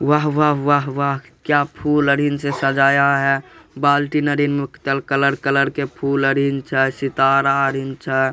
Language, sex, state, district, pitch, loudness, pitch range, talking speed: Hindi, male, Bihar, Begusarai, 140 Hz, -18 LUFS, 135-145 Hz, 145 wpm